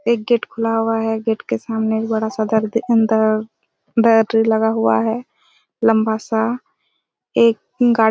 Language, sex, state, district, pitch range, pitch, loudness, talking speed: Hindi, female, Chhattisgarh, Raigarh, 220-230 Hz, 225 Hz, -18 LUFS, 155 wpm